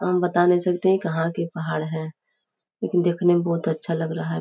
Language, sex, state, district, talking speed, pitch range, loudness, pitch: Hindi, female, Uttar Pradesh, Gorakhpur, 230 wpm, 160-175 Hz, -23 LUFS, 170 Hz